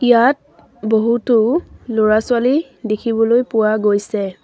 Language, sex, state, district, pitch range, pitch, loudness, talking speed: Assamese, female, Assam, Sonitpur, 215-245 Hz, 225 Hz, -16 LUFS, 80 wpm